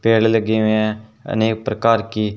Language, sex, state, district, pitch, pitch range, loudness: Hindi, male, Rajasthan, Bikaner, 110 Hz, 110-115 Hz, -18 LUFS